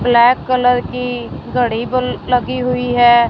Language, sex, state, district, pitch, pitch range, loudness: Hindi, female, Punjab, Fazilka, 245 Hz, 240-250 Hz, -15 LUFS